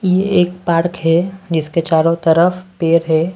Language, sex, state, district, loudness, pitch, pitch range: Hindi, male, Delhi, New Delhi, -15 LUFS, 170 Hz, 165-180 Hz